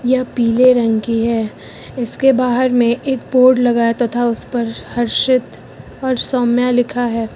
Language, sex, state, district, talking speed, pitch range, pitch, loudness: Hindi, female, Uttar Pradesh, Lucknow, 155 wpm, 235-255 Hz, 245 Hz, -15 LUFS